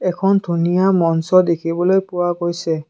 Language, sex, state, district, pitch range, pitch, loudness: Assamese, male, Assam, Kamrup Metropolitan, 170-185 Hz, 175 Hz, -17 LUFS